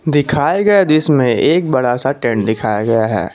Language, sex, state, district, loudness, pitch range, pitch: Hindi, male, Jharkhand, Garhwa, -14 LUFS, 110-155 Hz, 130 Hz